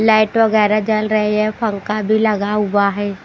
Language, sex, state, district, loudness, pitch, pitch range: Hindi, female, Bihar, Katihar, -16 LUFS, 215 Hz, 210-215 Hz